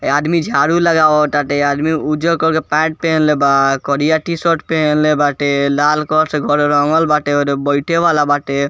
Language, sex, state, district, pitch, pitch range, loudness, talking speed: Bhojpuri, male, Bihar, East Champaran, 150 Hz, 145-160 Hz, -14 LUFS, 185 wpm